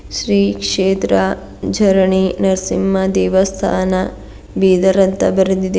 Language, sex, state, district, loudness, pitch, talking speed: Kannada, female, Karnataka, Bidar, -15 LUFS, 190 Hz, 85 wpm